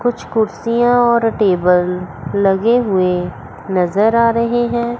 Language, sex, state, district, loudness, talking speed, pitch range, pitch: Hindi, female, Chandigarh, Chandigarh, -15 LUFS, 120 wpm, 180-235 Hz, 220 Hz